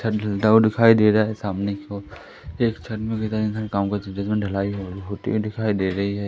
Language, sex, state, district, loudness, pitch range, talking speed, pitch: Hindi, male, Madhya Pradesh, Katni, -22 LUFS, 100-110 Hz, 180 wpm, 105 Hz